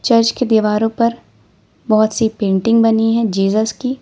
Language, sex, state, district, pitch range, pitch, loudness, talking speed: Hindi, female, Uttar Pradesh, Lalitpur, 215-230 Hz, 225 Hz, -15 LUFS, 165 wpm